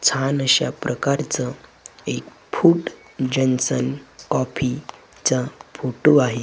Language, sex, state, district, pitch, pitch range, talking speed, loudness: Marathi, male, Maharashtra, Gondia, 135 Hz, 130-140 Hz, 85 wpm, -21 LUFS